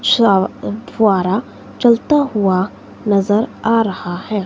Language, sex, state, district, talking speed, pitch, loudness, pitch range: Hindi, female, Himachal Pradesh, Shimla, 120 wpm, 205 Hz, -16 LUFS, 190-230 Hz